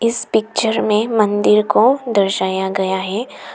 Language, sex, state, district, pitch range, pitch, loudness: Hindi, female, Arunachal Pradesh, Papum Pare, 195-225 Hz, 210 Hz, -16 LUFS